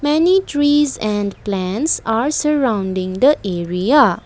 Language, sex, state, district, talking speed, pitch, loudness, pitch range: English, female, Assam, Kamrup Metropolitan, 115 wpm, 230 Hz, -17 LUFS, 195-295 Hz